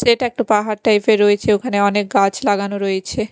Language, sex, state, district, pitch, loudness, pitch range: Bengali, female, Chhattisgarh, Raipur, 205 Hz, -16 LUFS, 200-225 Hz